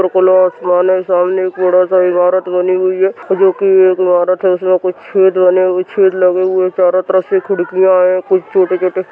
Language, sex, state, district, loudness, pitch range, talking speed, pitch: Hindi, female, Uttarakhand, Tehri Garhwal, -12 LUFS, 180-185 Hz, 210 wpm, 185 Hz